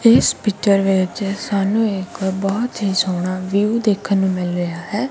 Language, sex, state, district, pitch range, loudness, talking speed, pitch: Punjabi, female, Punjab, Kapurthala, 185-210 Hz, -19 LUFS, 165 wpm, 195 Hz